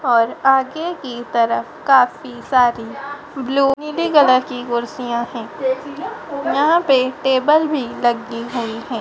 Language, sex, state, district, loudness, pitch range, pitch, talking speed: Hindi, female, Madhya Pradesh, Dhar, -18 LUFS, 235-285 Hz, 260 Hz, 125 wpm